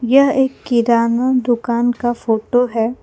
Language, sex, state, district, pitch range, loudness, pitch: Hindi, female, Jharkhand, Palamu, 235-255 Hz, -16 LUFS, 240 Hz